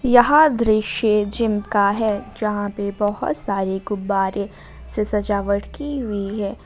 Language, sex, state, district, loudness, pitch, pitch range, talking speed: Hindi, female, Jharkhand, Ranchi, -20 LUFS, 210 Hz, 200-225 Hz, 135 wpm